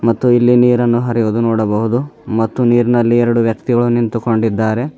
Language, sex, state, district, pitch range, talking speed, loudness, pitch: Kannada, male, Karnataka, Bidar, 115-120 Hz, 120 wpm, -14 LUFS, 120 Hz